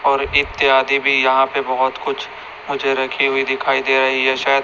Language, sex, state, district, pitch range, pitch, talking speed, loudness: Hindi, male, Chhattisgarh, Raipur, 130-140 Hz, 135 Hz, 195 wpm, -16 LUFS